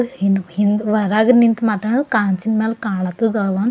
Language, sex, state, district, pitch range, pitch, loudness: Kannada, female, Karnataka, Bidar, 200-225 Hz, 215 Hz, -17 LUFS